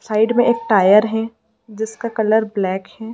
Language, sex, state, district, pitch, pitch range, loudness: Hindi, female, Madhya Pradesh, Dhar, 220 Hz, 210-225 Hz, -17 LUFS